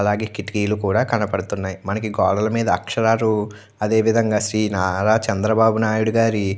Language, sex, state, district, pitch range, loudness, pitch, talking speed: Telugu, male, Andhra Pradesh, Chittoor, 100-110 Hz, -20 LUFS, 105 Hz, 145 wpm